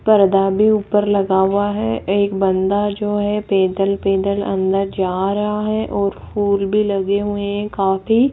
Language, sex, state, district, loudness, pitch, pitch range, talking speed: Hindi, female, Rajasthan, Jaipur, -17 LUFS, 200 Hz, 195-205 Hz, 165 wpm